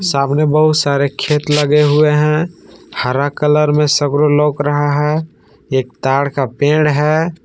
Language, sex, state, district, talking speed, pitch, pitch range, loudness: Hindi, male, Jharkhand, Palamu, 155 wpm, 150 Hz, 145-150 Hz, -14 LUFS